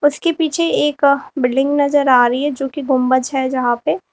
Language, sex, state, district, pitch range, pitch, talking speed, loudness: Hindi, female, Uttar Pradesh, Lalitpur, 260-290 Hz, 280 Hz, 220 wpm, -16 LUFS